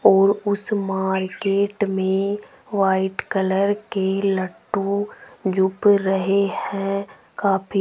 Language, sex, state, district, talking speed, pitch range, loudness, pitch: Hindi, female, Rajasthan, Jaipur, 100 wpm, 190-200 Hz, -21 LUFS, 195 Hz